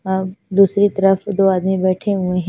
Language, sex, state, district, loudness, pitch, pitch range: Hindi, female, Punjab, Fazilka, -16 LUFS, 190 Hz, 185-200 Hz